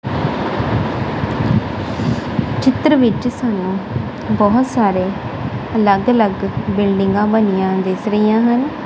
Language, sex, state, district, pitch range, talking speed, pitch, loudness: Punjabi, female, Punjab, Kapurthala, 190-240 Hz, 80 wpm, 210 Hz, -16 LUFS